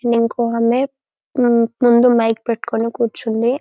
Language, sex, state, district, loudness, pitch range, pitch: Telugu, female, Telangana, Karimnagar, -17 LUFS, 230-245 Hz, 235 Hz